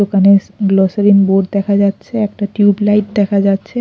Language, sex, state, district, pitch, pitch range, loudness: Bengali, female, Odisha, Khordha, 200 Hz, 195-205 Hz, -13 LUFS